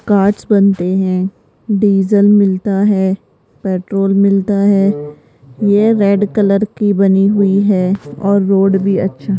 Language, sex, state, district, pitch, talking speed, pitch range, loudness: Hindi, female, Rajasthan, Jaipur, 195 Hz, 135 wpm, 190-205 Hz, -13 LUFS